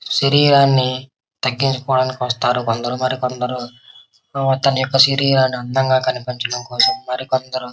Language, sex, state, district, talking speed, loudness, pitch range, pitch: Telugu, male, Andhra Pradesh, Srikakulam, 110 wpm, -17 LUFS, 125-135 Hz, 130 Hz